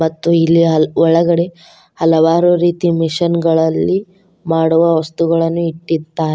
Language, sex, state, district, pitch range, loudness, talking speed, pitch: Kannada, female, Karnataka, Koppal, 160-170 Hz, -14 LUFS, 105 wpm, 165 Hz